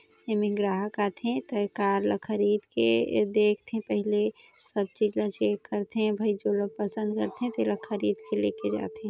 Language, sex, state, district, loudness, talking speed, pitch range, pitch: Chhattisgarhi, female, Chhattisgarh, Sarguja, -28 LUFS, 165 wpm, 195-215 Hz, 205 Hz